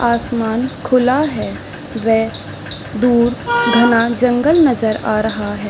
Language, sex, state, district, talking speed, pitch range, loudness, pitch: Hindi, female, Chhattisgarh, Raigarh, 115 wpm, 225-250 Hz, -15 LUFS, 235 Hz